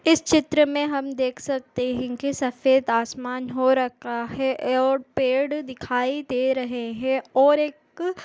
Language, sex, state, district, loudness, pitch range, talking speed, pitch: Hindi, female, Uttar Pradesh, Deoria, -23 LUFS, 250-285 Hz, 155 wpm, 265 Hz